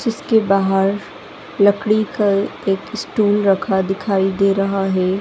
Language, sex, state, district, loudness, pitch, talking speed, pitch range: Hindi, female, Uttar Pradesh, Etah, -17 LUFS, 195 Hz, 125 wpm, 195-205 Hz